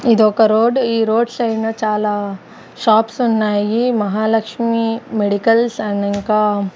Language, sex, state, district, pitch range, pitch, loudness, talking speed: Telugu, female, Andhra Pradesh, Sri Satya Sai, 210-230 Hz, 220 Hz, -16 LUFS, 115 wpm